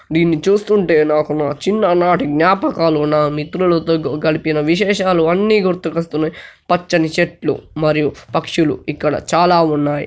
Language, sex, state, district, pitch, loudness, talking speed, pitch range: Telugu, male, Telangana, Nalgonda, 165 Hz, -16 LUFS, 125 wpm, 150-175 Hz